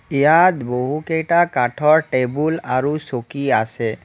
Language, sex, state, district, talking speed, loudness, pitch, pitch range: Assamese, male, Assam, Kamrup Metropolitan, 105 wpm, -18 LUFS, 145 Hz, 125-160 Hz